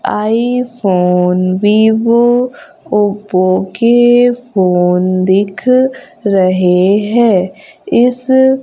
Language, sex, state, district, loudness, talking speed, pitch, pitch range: Hindi, female, Madhya Pradesh, Umaria, -11 LUFS, 70 wpm, 210 Hz, 185-245 Hz